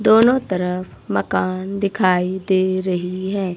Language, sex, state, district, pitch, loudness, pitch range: Hindi, female, Himachal Pradesh, Shimla, 185 Hz, -19 LUFS, 180-195 Hz